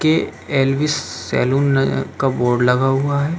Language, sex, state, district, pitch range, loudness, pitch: Hindi, male, Uttar Pradesh, Jalaun, 135-145 Hz, -18 LUFS, 135 Hz